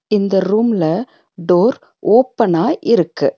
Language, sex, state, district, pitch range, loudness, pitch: Tamil, female, Tamil Nadu, Nilgiris, 185-235 Hz, -15 LUFS, 210 Hz